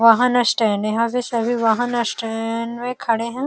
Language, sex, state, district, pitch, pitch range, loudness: Hindi, female, Uttar Pradesh, Jalaun, 230 Hz, 225-245 Hz, -20 LUFS